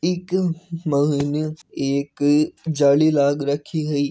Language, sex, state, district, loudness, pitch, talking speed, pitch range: Hindi, male, Rajasthan, Nagaur, -21 LUFS, 150 Hz, 115 wpm, 140-160 Hz